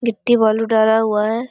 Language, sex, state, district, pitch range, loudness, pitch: Hindi, female, Bihar, Vaishali, 220-230 Hz, -16 LUFS, 220 Hz